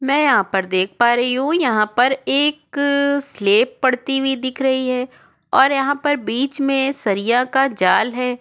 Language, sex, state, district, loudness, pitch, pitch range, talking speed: Hindi, female, Goa, North and South Goa, -17 LUFS, 265 Hz, 245-280 Hz, 180 wpm